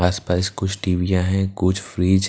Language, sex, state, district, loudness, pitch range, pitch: Hindi, male, Bihar, Katihar, -21 LUFS, 90-95 Hz, 95 Hz